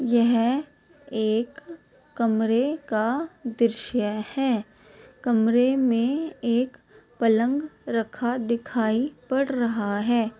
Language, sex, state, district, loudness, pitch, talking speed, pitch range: Hindi, female, Bihar, Purnia, -24 LUFS, 240 Hz, 85 wpm, 225-265 Hz